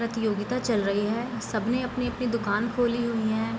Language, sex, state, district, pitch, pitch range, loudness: Hindi, female, Bihar, East Champaran, 230 Hz, 215-240 Hz, -27 LUFS